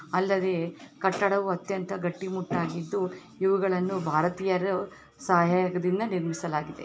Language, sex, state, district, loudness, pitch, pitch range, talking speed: Kannada, female, Karnataka, Belgaum, -28 LUFS, 185 Hz, 175-190 Hz, 80 wpm